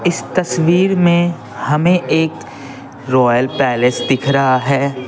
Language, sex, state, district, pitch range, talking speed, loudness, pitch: Hindi, male, Bihar, Patna, 130-170 Hz, 120 wpm, -15 LUFS, 135 Hz